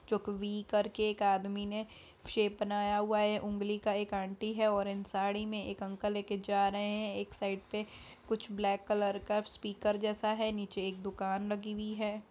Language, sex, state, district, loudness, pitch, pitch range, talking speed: Hindi, female, Bihar, Darbhanga, -35 LUFS, 205 Hz, 200-210 Hz, 195 wpm